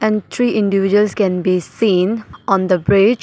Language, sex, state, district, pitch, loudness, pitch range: English, female, Arunachal Pradesh, Papum Pare, 200 Hz, -16 LUFS, 185-215 Hz